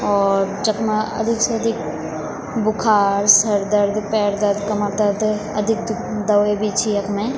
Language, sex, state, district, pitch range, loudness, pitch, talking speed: Garhwali, female, Uttarakhand, Tehri Garhwal, 205-215 Hz, -19 LUFS, 210 Hz, 140 wpm